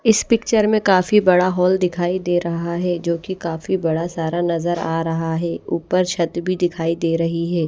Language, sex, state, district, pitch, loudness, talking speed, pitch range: Hindi, female, Odisha, Malkangiri, 175 Hz, -19 LUFS, 205 wpm, 165-185 Hz